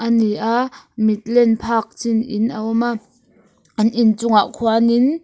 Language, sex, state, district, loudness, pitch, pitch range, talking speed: Mizo, female, Mizoram, Aizawl, -18 LUFS, 230 Hz, 220-235 Hz, 170 wpm